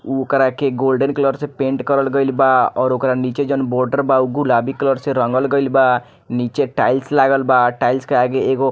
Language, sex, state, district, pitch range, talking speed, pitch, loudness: Bhojpuri, male, Bihar, Muzaffarpur, 130-140 Hz, 220 wpm, 135 Hz, -17 LUFS